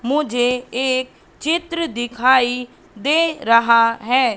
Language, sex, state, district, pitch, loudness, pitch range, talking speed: Hindi, female, Madhya Pradesh, Katni, 250 Hz, -18 LUFS, 240-300 Hz, 95 wpm